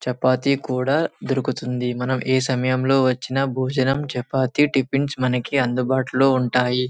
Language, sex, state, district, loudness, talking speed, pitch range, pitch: Telugu, male, Telangana, Karimnagar, -21 LUFS, 120 wpm, 125-135 Hz, 130 Hz